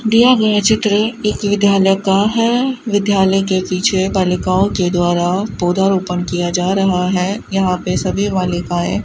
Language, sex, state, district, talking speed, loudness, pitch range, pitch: Hindi, female, Rajasthan, Bikaner, 150 wpm, -15 LUFS, 180-205 Hz, 195 Hz